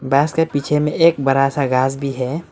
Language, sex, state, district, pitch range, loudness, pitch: Hindi, male, Arunachal Pradesh, Lower Dibang Valley, 135-155 Hz, -17 LUFS, 140 Hz